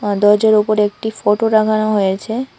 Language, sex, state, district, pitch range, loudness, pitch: Bengali, female, Tripura, West Tripura, 205-220 Hz, -15 LUFS, 215 Hz